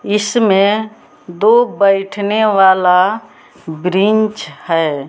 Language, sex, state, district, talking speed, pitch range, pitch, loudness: Hindi, female, Bihar, West Champaran, 70 wpm, 180-215 Hz, 200 Hz, -13 LUFS